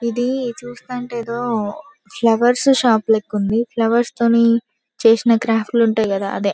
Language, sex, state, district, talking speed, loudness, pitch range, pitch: Telugu, female, Telangana, Karimnagar, 135 wpm, -17 LUFS, 220-245 Hz, 235 Hz